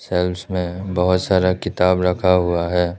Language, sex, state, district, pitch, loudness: Hindi, male, Arunachal Pradesh, Lower Dibang Valley, 90 Hz, -19 LUFS